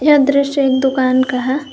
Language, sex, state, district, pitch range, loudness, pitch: Hindi, female, Jharkhand, Garhwa, 260-280 Hz, -14 LUFS, 270 Hz